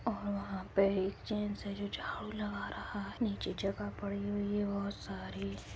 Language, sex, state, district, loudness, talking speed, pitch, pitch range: Hindi, female, Bihar, Begusarai, -37 LUFS, 185 wpm, 200 Hz, 195-205 Hz